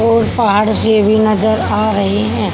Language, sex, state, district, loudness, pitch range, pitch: Hindi, female, Haryana, Jhajjar, -13 LUFS, 210-220 Hz, 215 Hz